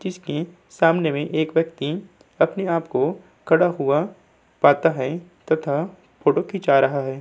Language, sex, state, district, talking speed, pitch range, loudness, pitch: Hindi, male, Uttar Pradesh, Budaun, 140 wpm, 145-180 Hz, -21 LUFS, 165 Hz